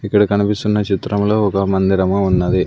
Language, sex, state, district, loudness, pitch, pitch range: Telugu, male, Andhra Pradesh, Sri Satya Sai, -16 LUFS, 100 Hz, 95-105 Hz